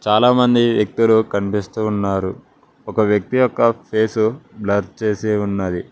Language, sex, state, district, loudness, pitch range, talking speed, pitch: Telugu, male, Telangana, Mahabubabad, -18 LUFS, 100-115 Hz, 110 wpm, 105 Hz